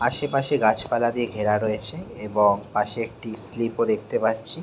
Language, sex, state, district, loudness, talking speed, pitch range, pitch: Bengali, male, West Bengal, Jhargram, -24 LUFS, 170 wpm, 105-120 Hz, 115 Hz